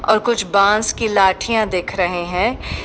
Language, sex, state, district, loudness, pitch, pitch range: Hindi, female, Uttar Pradesh, Shamli, -17 LUFS, 200 Hz, 185-220 Hz